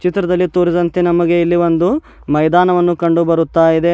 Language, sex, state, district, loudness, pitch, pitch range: Kannada, male, Karnataka, Bidar, -14 LUFS, 175 Hz, 170-180 Hz